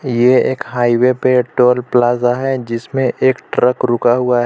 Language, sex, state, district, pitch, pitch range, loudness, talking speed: Hindi, male, Jharkhand, Palamu, 125 Hz, 120-130 Hz, -14 LUFS, 175 wpm